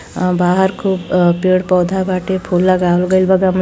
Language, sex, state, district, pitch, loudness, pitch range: Bhojpuri, female, Uttar Pradesh, Deoria, 185 Hz, -14 LUFS, 180-190 Hz